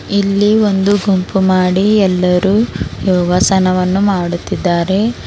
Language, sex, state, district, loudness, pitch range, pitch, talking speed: Kannada, female, Karnataka, Bidar, -13 LUFS, 180-200 Hz, 190 Hz, 80 wpm